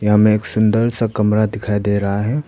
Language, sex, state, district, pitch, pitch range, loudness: Hindi, male, Arunachal Pradesh, Papum Pare, 105 Hz, 105-110 Hz, -17 LUFS